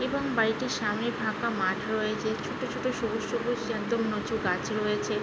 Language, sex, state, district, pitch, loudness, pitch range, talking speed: Bengali, female, West Bengal, Jhargram, 220 Hz, -29 LUFS, 215-235 Hz, 170 wpm